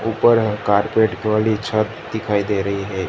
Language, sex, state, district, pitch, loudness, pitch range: Hindi, male, Gujarat, Gandhinagar, 105 Hz, -19 LUFS, 100-110 Hz